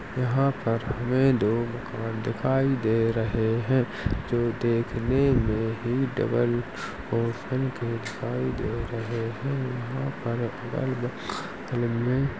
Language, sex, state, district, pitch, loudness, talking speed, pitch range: Hindi, male, Uttar Pradesh, Jalaun, 120 Hz, -27 LUFS, 95 wpm, 115-130 Hz